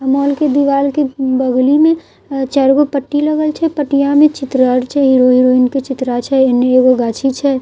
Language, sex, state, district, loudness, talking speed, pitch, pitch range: Maithili, female, Bihar, Katihar, -13 LUFS, 195 wpm, 270 Hz, 255-285 Hz